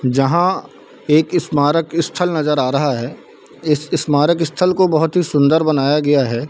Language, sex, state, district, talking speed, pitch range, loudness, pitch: Hindi, male, Bihar, Darbhanga, 165 wpm, 145-165 Hz, -16 LUFS, 150 Hz